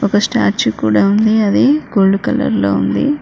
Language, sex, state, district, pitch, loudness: Telugu, female, Telangana, Mahabubabad, 200 Hz, -13 LUFS